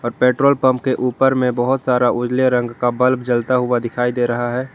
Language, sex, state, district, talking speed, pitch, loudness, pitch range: Hindi, male, Jharkhand, Garhwa, 215 wpm, 125 Hz, -17 LUFS, 120-130 Hz